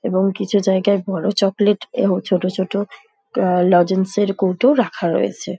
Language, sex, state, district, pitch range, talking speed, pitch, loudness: Bengali, female, West Bengal, Dakshin Dinajpur, 185-205 Hz, 160 wpm, 195 Hz, -18 LUFS